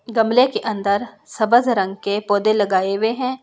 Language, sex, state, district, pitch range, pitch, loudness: Hindi, female, Delhi, New Delhi, 200-240 Hz, 215 Hz, -18 LUFS